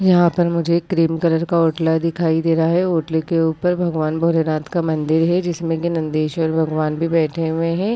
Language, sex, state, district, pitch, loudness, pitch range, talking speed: Hindi, female, Uttar Pradesh, Varanasi, 165 Hz, -18 LUFS, 160-170 Hz, 205 wpm